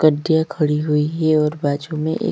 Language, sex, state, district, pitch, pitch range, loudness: Hindi, female, Chhattisgarh, Sukma, 155 Hz, 150-160 Hz, -19 LUFS